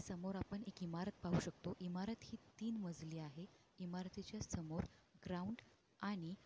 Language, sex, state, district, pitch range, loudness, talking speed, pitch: Marathi, female, Maharashtra, Sindhudurg, 175-200 Hz, -48 LUFS, 140 wpm, 185 Hz